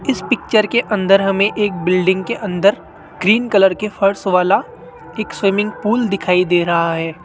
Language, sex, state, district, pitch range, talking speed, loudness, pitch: Hindi, male, Rajasthan, Jaipur, 185-210 Hz, 175 wpm, -16 LUFS, 195 Hz